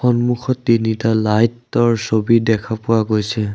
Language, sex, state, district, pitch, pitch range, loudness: Assamese, male, Assam, Sonitpur, 115 Hz, 110-120 Hz, -17 LUFS